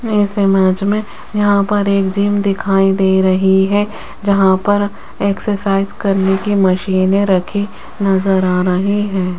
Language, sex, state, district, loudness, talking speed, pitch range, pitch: Hindi, female, Rajasthan, Jaipur, -15 LUFS, 140 wpm, 190-205 Hz, 195 Hz